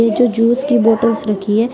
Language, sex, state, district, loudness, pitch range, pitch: Hindi, female, Uttar Pradesh, Shamli, -14 LUFS, 225-240 Hz, 230 Hz